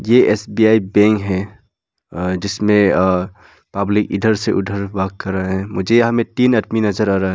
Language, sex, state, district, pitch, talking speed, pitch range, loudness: Hindi, male, Arunachal Pradesh, Lower Dibang Valley, 100 Hz, 195 wpm, 95-110 Hz, -16 LUFS